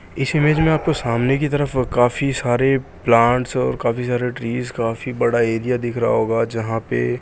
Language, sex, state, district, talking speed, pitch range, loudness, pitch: Hindi, male, Bihar, Jahanabad, 200 wpm, 115-135 Hz, -19 LUFS, 120 Hz